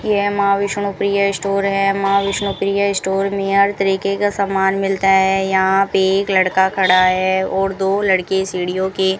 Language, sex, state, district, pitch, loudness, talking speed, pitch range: Hindi, female, Rajasthan, Bikaner, 195 Hz, -16 LUFS, 190 wpm, 190-200 Hz